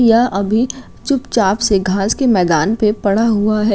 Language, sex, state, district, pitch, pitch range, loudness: Hindi, female, Uttar Pradesh, Gorakhpur, 215 Hz, 200-235 Hz, -15 LUFS